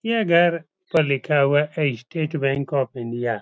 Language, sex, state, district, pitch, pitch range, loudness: Hindi, male, Uttar Pradesh, Etah, 145 Hz, 135-165 Hz, -21 LUFS